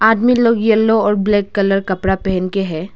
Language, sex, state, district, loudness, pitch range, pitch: Hindi, female, Arunachal Pradesh, Lower Dibang Valley, -15 LUFS, 190-220 Hz, 205 Hz